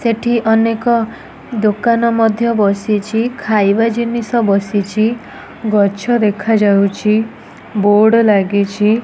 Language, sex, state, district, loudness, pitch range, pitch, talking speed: Odia, female, Odisha, Nuapada, -14 LUFS, 205-230 Hz, 220 Hz, 95 wpm